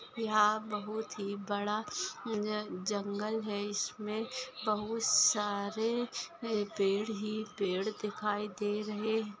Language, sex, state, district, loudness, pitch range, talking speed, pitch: Hindi, female, Maharashtra, Solapur, -34 LUFS, 205-220 Hz, 100 wpm, 210 Hz